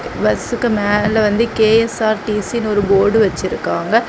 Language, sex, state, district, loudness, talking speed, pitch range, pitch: Tamil, female, Tamil Nadu, Kanyakumari, -15 LUFS, 105 wpm, 205-230 Hz, 215 Hz